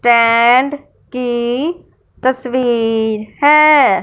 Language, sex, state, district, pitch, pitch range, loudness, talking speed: Hindi, male, Punjab, Fazilka, 250 Hz, 235-285 Hz, -13 LUFS, 60 wpm